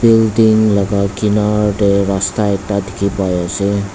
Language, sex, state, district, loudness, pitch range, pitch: Nagamese, male, Nagaland, Dimapur, -14 LUFS, 100-105 Hz, 100 Hz